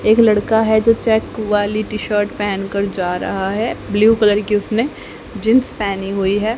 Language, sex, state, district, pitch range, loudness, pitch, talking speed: Hindi, female, Haryana, Rohtak, 205-220 Hz, -17 LUFS, 210 Hz, 190 wpm